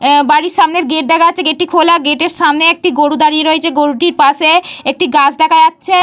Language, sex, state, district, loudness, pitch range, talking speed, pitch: Bengali, female, Jharkhand, Jamtara, -10 LUFS, 300-345 Hz, 190 wpm, 320 Hz